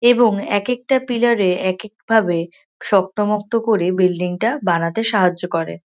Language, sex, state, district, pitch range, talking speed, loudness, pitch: Bengali, female, West Bengal, North 24 Parganas, 180-225 Hz, 145 wpm, -18 LUFS, 205 Hz